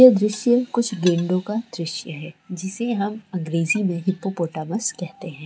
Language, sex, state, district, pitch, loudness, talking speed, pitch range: Hindi, female, Jharkhand, Jamtara, 190 Hz, -23 LUFS, 155 wpm, 170-215 Hz